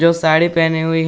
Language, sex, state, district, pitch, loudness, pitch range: Hindi, male, Jharkhand, Garhwa, 165 Hz, -14 LUFS, 160-170 Hz